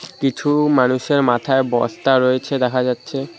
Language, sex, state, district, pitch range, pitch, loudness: Bengali, male, West Bengal, Alipurduar, 125-145 Hz, 135 Hz, -17 LUFS